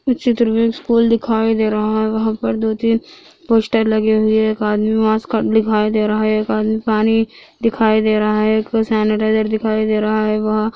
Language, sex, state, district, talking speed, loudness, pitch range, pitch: Hindi, female, Andhra Pradesh, Anantapur, 200 wpm, -16 LUFS, 215-225 Hz, 220 Hz